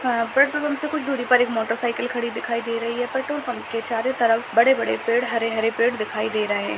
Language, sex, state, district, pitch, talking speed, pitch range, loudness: Hindi, female, Uttar Pradesh, Jyotiba Phule Nagar, 235 Hz, 255 wpm, 230-255 Hz, -22 LUFS